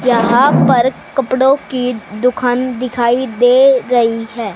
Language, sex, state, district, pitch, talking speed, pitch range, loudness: Hindi, female, Haryana, Charkhi Dadri, 250 Hz, 120 wpm, 235-255 Hz, -13 LUFS